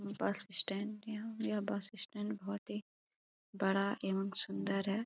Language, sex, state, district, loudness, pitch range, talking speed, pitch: Hindi, female, Bihar, Jahanabad, -37 LUFS, 195-210 Hz, 140 wpm, 205 Hz